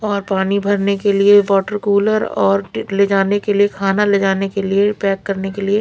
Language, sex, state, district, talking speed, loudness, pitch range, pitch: Hindi, female, Bihar, Patna, 215 wpm, -16 LUFS, 195-205 Hz, 200 Hz